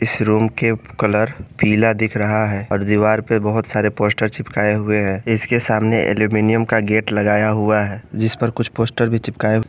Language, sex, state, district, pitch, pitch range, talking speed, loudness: Hindi, male, Jharkhand, Garhwa, 110 Hz, 105-115 Hz, 190 wpm, -18 LUFS